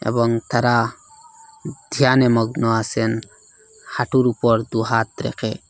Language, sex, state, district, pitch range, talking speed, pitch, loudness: Bengali, male, Assam, Hailakandi, 115-145 Hz, 105 wpm, 120 Hz, -19 LUFS